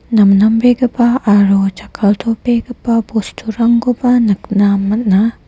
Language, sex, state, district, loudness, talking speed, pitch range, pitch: Garo, female, Meghalaya, West Garo Hills, -13 LUFS, 65 wpm, 205-240 Hz, 225 Hz